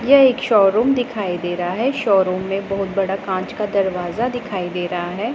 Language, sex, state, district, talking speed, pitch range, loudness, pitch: Hindi, female, Punjab, Pathankot, 200 wpm, 185-235 Hz, -19 LUFS, 195 Hz